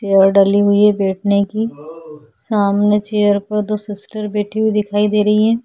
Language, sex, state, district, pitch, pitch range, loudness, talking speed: Hindi, female, Chhattisgarh, Korba, 205 Hz, 200-210 Hz, -15 LUFS, 180 wpm